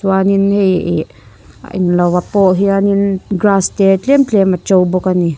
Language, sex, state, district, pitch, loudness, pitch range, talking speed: Mizo, female, Mizoram, Aizawl, 195 Hz, -13 LUFS, 185-200 Hz, 165 wpm